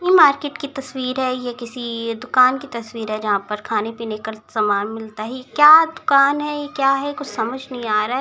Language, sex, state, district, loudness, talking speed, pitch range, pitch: Hindi, female, Bihar, Muzaffarpur, -19 LUFS, 220 wpm, 220-275 Hz, 250 Hz